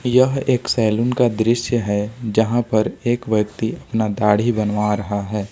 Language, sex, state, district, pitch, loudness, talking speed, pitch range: Hindi, male, Jharkhand, Ranchi, 110 Hz, -19 LUFS, 165 wpm, 105-120 Hz